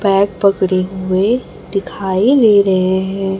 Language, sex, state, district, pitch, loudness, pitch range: Hindi, female, Chhattisgarh, Raipur, 195 Hz, -14 LUFS, 190-200 Hz